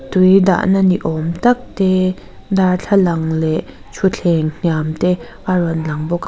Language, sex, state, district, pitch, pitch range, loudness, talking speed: Mizo, female, Mizoram, Aizawl, 175 Hz, 160-190 Hz, -16 LUFS, 135 wpm